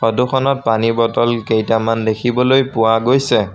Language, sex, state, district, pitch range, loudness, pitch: Assamese, male, Assam, Sonitpur, 115-125 Hz, -15 LUFS, 115 Hz